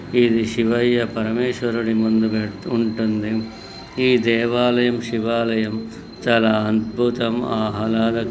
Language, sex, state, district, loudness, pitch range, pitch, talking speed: Telugu, male, Andhra Pradesh, Srikakulam, -20 LUFS, 110-120 Hz, 115 Hz, 80 wpm